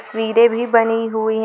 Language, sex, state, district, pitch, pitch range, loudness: Hindi, female, Jharkhand, Garhwa, 225 Hz, 220-230 Hz, -16 LUFS